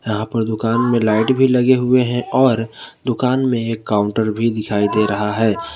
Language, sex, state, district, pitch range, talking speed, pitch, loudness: Hindi, male, Jharkhand, Garhwa, 110-125 Hz, 200 wpm, 115 Hz, -17 LUFS